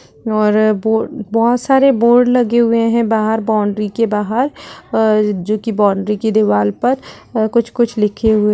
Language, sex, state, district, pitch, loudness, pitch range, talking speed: Hindi, female, Uttar Pradesh, Etah, 220 Hz, -15 LUFS, 210-235 Hz, 160 wpm